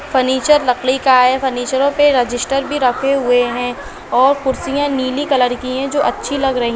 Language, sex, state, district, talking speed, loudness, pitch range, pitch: Hindi, female, Chhattisgarh, Bilaspur, 195 wpm, -15 LUFS, 250-275 Hz, 260 Hz